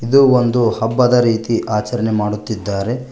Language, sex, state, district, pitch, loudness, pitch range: Kannada, male, Karnataka, Koppal, 115 Hz, -16 LUFS, 110-125 Hz